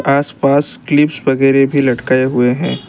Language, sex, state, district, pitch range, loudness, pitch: Hindi, male, Assam, Kamrup Metropolitan, 130-145 Hz, -13 LUFS, 135 Hz